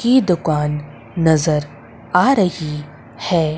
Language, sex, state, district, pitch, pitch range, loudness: Hindi, female, Madhya Pradesh, Umaria, 155 Hz, 145-175 Hz, -17 LUFS